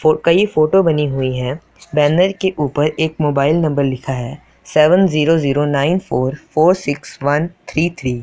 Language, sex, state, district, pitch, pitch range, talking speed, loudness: Hindi, male, Punjab, Pathankot, 150 Hz, 140-165 Hz, 180 wpm, -16 LUFS